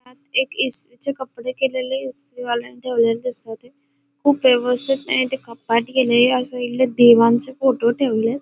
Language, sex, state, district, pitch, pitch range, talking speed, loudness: Marathi, female, Maharashtra, Solapur, 250 Hz, 240-265 Hz, 135 wpm, -19 LUFS